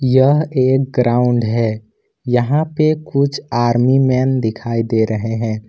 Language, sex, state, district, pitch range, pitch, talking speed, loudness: Hindi, male, Jharkhand, Ranchi, 115-135 Hz, 125 Hz, 135 wpm, -16 LUFS